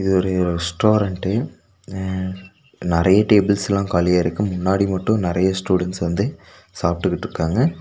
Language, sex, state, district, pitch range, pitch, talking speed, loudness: Tamil, male, Tamil Nadu, Nilgiris, 90-100 Hz, 95 Hz, 110 wpm, -20 LUFS